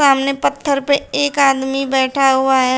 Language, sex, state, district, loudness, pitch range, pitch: Hindi, female, Uttar Pradesh, Shamli, -15 LUFS, 265-280 Hz, 275 Hz